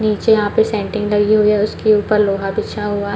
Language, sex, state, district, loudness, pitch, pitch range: Hindi, female, Chhattisgarh, Balrampur, -16 LUFS, 210 Hz, 205-215 Hz